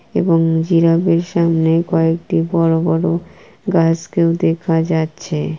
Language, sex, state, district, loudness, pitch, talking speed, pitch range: Bengali, female, West Bengal, Kolkata, -16 LUFS, 165 Hz, 95 wpm, 165-170 Hz